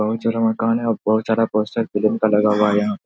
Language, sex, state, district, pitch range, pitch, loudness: Hindi, male, Bihar, Saharsa, 105-115 Hz, 110 Hz, -19 LUFS